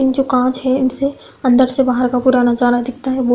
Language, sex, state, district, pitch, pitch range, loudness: Hindi, female, Uttar Pradesh, Budaun, 255 Hz, 250-265 Hz, -15 LUFS